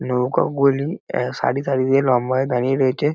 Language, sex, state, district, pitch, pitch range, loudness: Bengali, male, West Bengal, North 24 Parganas, 135 Hz, 130-140 Hz, -19 LUFS